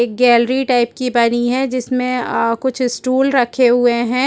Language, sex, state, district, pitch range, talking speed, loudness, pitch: Hindi, female, Chhattisgarh, Rajnandgaon, 240-255 Hz, 170 wpm, -15 LUFS, 250 Hz